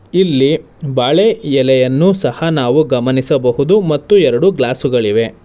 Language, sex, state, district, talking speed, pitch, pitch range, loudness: Kannada, male, Karnataka, Bangalore, 110 wpm, 140 Hz, 130-160 Hz, -13 LUFS